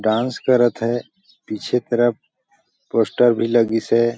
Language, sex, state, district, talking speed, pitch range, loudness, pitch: Hindi, male, Chhattisgarh, Balrampur, 130 wpm, 115-125 Hz, -19 LUFS, 120 Hz